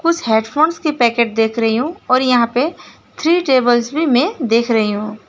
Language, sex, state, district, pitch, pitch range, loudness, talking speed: Hindi, female, West Bengal, Alipurduar, 245 Hz, 230-310 Hz, -15 LUFS, 180 wpm